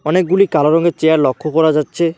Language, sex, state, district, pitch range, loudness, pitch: Bengali, male, West Bengal, Alipurduar, 155-170 Hz, -14 LUFS, 160 Hz